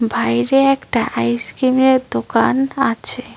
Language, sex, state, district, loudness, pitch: Bengali, female, West Bengal, Cooch Behar, -16 LUFS, 255 Hz